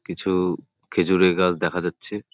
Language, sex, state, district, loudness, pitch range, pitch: Bengali, male, West Bengal, Jalpaiguri, -22 LUFS, 90-95 Hz, 90 Hz